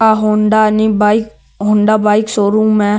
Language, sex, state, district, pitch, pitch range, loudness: Marwari, male, Rajasthan, Nagaur, 215 Hz, 210-215 Hz, -12 LUFS